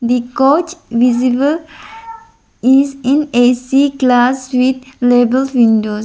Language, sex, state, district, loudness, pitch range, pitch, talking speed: English, female, Arunachal Pradesh, Lower Dibang Valley, -13 LUFS, 245-285 Hz, 260 Hz, 100 wpm